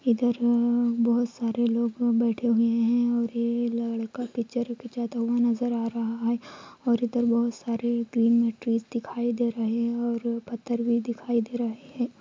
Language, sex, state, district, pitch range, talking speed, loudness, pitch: Hindi, female, Andhra Pradesh, Anantapur, 230-240 Hz, 160 wpm, -26 LUFS, 235 Hz